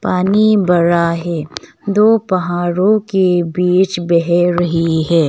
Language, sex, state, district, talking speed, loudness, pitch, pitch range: Hindi, female, Arunachal Pradesh, Longding, 115 wpm, -14 LUFS, 175 Hz, 170-190 Hz